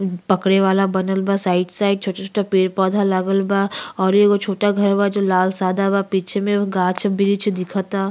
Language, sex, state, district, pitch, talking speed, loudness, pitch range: Bhojpuri, female, Uttar Pradesh, Ghazipur, 195 Hz, 185 wpm, -18 LUFS, 190-200 Hz